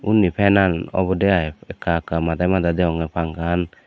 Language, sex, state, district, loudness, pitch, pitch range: Chakma, male, Tripura, Dhalai, -20 LUFS, 90 Hz, 85-95 Hz